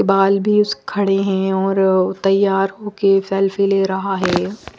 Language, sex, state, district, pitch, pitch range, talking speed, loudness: Hindi, female, Punjab, Fazilka, 195 Hz, 195-200 Hz, 150 wpm, -17 LUFS